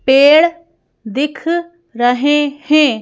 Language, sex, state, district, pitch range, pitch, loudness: Hindi, female, Madhya Pradesh, Bhopal, 265-335 Hz, 295 Hz, -13 LUFS